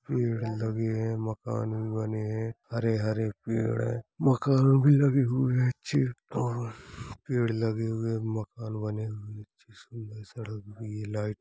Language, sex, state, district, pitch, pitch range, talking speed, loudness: Hindi, male, Uttar Pradesh, Hamirpur, 115 Hz, 110-120 Hz, 165 wpm, -29 LUFS